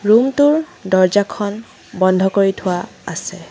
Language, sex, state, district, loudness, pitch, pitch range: Assamese, female, Assam, Sonitpur, -17 LUFS, 205 Hz, 190-245 Hz